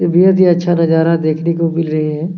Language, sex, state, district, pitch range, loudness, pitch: Hindi, male, Chhattisgarh, Kabirdham, 160-175 Hz, -13 LUFS, 165 Hz